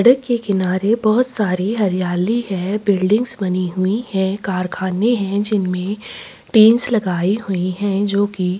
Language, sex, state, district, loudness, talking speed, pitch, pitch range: Hindi, female, Chhattisgarh, Sukma, -18 LUFS, 145 wpm, 200 Hz, 185-220 Hz